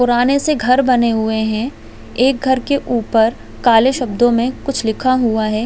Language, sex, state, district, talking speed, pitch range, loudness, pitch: Hindi, female, Chhattisgarh, Balrampur, 170 wpm, 225-260 Hz, -15 LUFS, 245 Hz